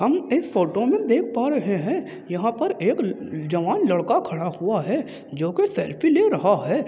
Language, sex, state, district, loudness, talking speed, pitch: Hindi, male, Uttar Pradesh, Jyotiba Phule Nagar, -22 LUFS, 190 wpm, 245 Hz